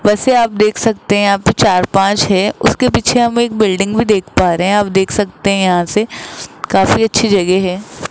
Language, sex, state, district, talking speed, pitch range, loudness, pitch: Hindi, female, Rajasthan, Jaipur, 220 wpm, 190-220 Hz, -13 LUFS, 205 Hz